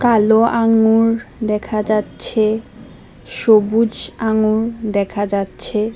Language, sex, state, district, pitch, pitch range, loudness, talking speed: Bengali, female, Assam, Hailakandi, 220 Hz, 215-225 Hz, -16 LUFS, 80 wpm